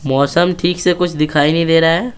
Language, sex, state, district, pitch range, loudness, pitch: Hindi, male, Bihar, Patna, 150-180 Hz, -14 LUFS, 165 Hz